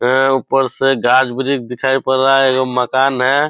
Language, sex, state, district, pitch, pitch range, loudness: Hindi, male, Bihar, Purnia, 135 Hz, 130-135 Hz, -14 LUFS